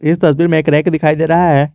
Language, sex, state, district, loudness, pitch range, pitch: Hindi, male, Jharkhand, Garhwa, -12 LUFS, 150-170 Hz, 160 Hz